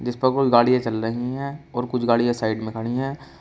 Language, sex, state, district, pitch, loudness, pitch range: Hindi, male, Uttar Pradesh, Shamli, 120 Hz, -22 LUFS, 115-130 Hz